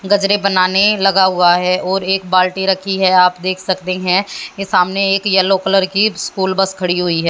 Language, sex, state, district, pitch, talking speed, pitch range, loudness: Hindi, female, Haryana, Jhajjar, 190 Hz, 205 wpm, 185-195 Hz, -14 LUFS